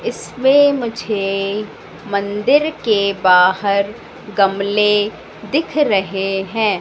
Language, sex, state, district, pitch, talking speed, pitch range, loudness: Hindi, female, Madhya Pradesh, Katni, 205 Hz, 80 wpm, 195-235 Hz, -16 LUFS